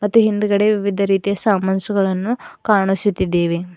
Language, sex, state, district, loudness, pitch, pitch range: Kannada, female, Karnataka, Bidar, -18 LUFS, 200 Hz, 190-210 Hz